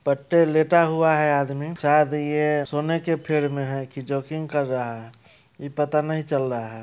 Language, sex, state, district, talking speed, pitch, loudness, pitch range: Hindi, male, Bihar, Muzaffarpur, 195 wpm, 150 Hz, -22 LUFS, 140-155 Hz